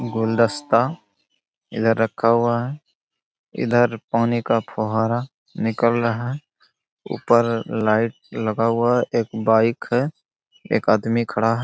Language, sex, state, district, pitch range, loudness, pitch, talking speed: Hindi, male, Bihar, Bhagalpur, 115-120 Hz, -21 LUFS, 115 Hz, 125 wpm